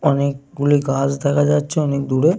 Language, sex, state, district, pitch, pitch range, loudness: Bengali, male, Jharkhand, Jamtara, 140 Hz, 140-145 Hz, -18 LUFS